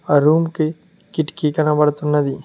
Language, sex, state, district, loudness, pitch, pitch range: Telugu, male, Telangana, Mahabubabad, -18 LUFS, 155 Hz, 150-165 Hz